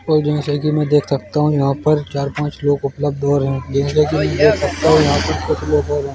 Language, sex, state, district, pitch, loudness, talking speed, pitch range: Hindi, male, Madhya Pradesh, Bhopal, 145 Hz, -17 LUFS, 245 wpm, 140-150 Hz